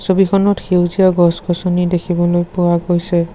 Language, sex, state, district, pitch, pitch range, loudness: Assamese, male, Assam, Sonitpur, 175 Hz, 175-185 Hz, -15 LUFS